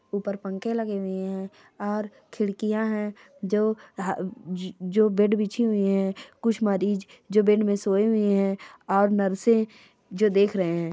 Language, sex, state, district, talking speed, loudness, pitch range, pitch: Hindi, female, Bihar, East Champaran, 155 wpm, -25 LUFS, 195-215 Hz, 205 Hz